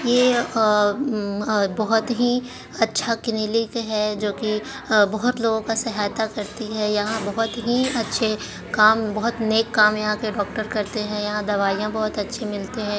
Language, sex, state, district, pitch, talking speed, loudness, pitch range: Hindi, female, Bihar, Jahanabad, 215 Hz, 160 wpm, -22 LUFS, 210-230 Hz